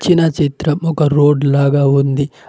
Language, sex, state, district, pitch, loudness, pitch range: Telugu, male, Telangana, Mahabubabad, 145 Hz, -14 LUFS, 140-160 Hz